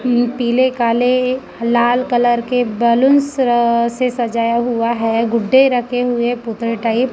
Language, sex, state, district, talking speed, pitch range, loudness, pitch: Hindi, female, Chhattisgarh, Raipur, 145 wpm, 235-250 Hz, -15 LUFS, 240 Hz